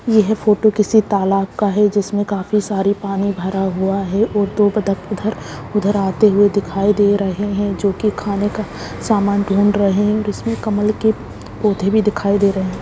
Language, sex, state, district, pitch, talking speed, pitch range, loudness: Hindi, female, Bihar, Lakhisarai, 205 Hz, 70 wpm, 200-210 Hz, -17 LUFS